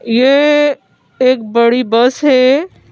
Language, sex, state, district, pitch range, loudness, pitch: Hindi, female, Madhya Pradesh, Bhopal, 235-285 Hz, -11 LUFS, 255 Hz